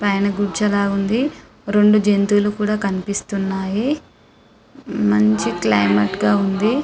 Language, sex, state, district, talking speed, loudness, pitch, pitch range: Telugu, female, Telangana, Karimnagar, 115 wpm, -18 LUFS, 200 Hz, 195-210 Hz